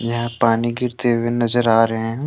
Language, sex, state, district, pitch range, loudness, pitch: Hindi, male, Jharkhand, Deoghar, 115-120 Hz, -18 LUFS, 120 Hz